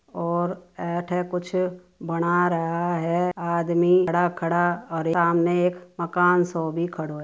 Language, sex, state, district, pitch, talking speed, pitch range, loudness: Marwari, female, Rajasthan, Churu, 175 Hz, 140 wpm, 170-180 Hz, -24 LUFS